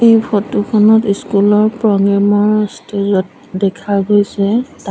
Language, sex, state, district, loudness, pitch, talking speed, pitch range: Assamese, female, Assam, Sonitpur, -13 LUFS, 205 Hz, 145 wpm, 200-215 Hz